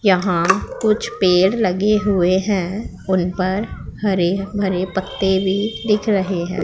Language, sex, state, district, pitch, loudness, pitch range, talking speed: Hindi, female, Punjab, Pathankot, 190 Hz, -18 LUFS, 185-210 Hz, 135 wpm